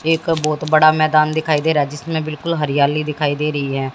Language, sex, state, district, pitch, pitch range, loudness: Hindi, female, Haryana, Jhajjar, 155 Hz, 145-155 Hz, -17 LUFS